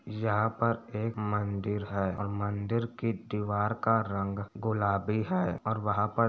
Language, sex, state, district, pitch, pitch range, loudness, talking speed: Hindi, male, Uttar Pradesh, Etah, 105 Hz, 100-115 Hz, -31 LUFS, 160 wpm